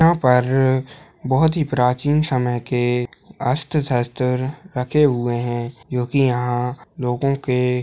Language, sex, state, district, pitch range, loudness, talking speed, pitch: Hindi, male, Bihar, Jahanabad, 125-145 Hz, -20 LUFS, 130 wpm, 125 Hz